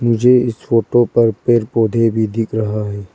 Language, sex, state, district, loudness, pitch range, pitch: Hindi, female, Arunachal Pradesh, Lower Dibang Valley, -15 LUFS, 110-120 Hz, 115 Hz